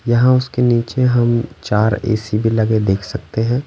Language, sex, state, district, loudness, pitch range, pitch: Hindi, male, Bihar, Patna, -16 LUFS, 110-125 Hz, 115 Hz